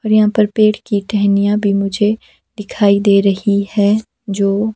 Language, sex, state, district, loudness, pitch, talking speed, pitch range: Hindi, female, Himachal Pradesh, Shimla, -14 LUFS, 205 Hz, 165 wpm, 200-215 Hz